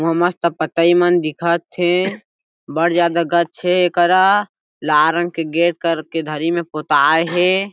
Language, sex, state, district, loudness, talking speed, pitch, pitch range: Chhattisgarhi, male, Chhattisgarh, Jashpur, -16 LUFS, 165 wpm, 170 Hz, 165-180 Hz